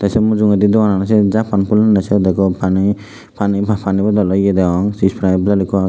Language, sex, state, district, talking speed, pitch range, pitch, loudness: Chakma, male, Tripura, Dhalai, 185 wpm, 95-105 Hz, 100 Hz, -14 LUFS